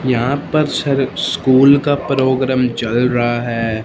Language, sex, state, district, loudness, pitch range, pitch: Hindi, male, Punjab, Fazilka, -15 LUFS, 120-140 Hz, 130 Hz